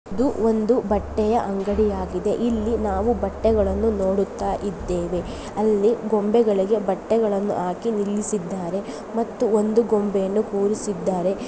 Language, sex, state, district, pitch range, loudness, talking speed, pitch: Kannada, female, Karnataka, Dharwad, 195-225 Hz, -22 LUFS, 90 wpm, 210 Hz